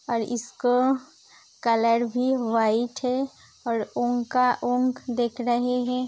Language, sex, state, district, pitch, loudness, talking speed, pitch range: Hindi, female, Uttar Pradesh, Hamirpur, 245 Hz, -25 LUFS, 130 wpm, 235-250 Hz